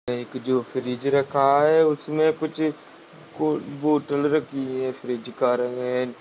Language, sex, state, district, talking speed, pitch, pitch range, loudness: Hindi, male, Chhattisgarh, Rajnandgaon, 145 wpm, 140 Hz, 125-155 Hz, -23 LUFS